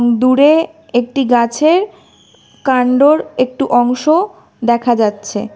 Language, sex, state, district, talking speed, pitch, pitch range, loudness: Bengali, female, Karnataka, Bangalore, 85 wpm, 255 Hz, 240-300 Hz, -13 LUFS